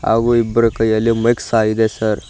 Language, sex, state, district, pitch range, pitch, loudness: Kannada, male, Karnataka, Koppal, 110-115 Hz, 115 Hz, -16 LUFS